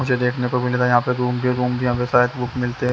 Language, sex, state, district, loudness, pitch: Hindi, male, Haryana, Jhajjar, -20 LUFS, 125 Hz